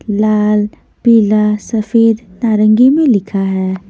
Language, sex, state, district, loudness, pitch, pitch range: Hindi, female, Maharashtra, Mumbai Suburban, -12 LUFS, 215 Hz, 205-225 Hz